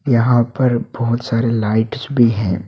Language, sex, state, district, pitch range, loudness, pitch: Hindi, male, Assam, Hailakandi, 115-125 Hz, -17 LUFS, 120 Hz